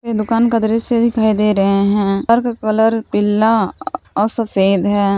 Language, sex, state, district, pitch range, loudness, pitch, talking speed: Hindi, female, Jharkhand, Palamu, 205-230 Hz, -15 LUFS, 220 Hz, 175 wpm